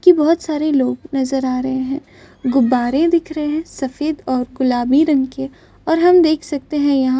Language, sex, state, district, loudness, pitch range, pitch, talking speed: Hindi, female, Maharashtra, Chandrapur, -17 LUFS, 260-310 Hz, 280 Hz, 200 wpm